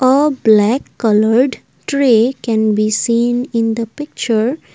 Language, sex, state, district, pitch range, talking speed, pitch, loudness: English, female, Assam, Kamrup Metropolitan, 220-265 Hz, 125 wpm, 235 Hz, -14 LUFS